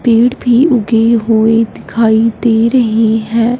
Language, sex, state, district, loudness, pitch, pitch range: Hindi, female, Punjab, Fazilka, -11 LUFS, 230 Hz, 225-235 Hz